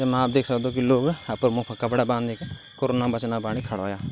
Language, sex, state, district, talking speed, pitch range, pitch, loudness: Garhwali, male, Uttarakhand, Tehri Garhwal, 235 wpm, 115-130 Hz, 125 Hz, -25 LUFS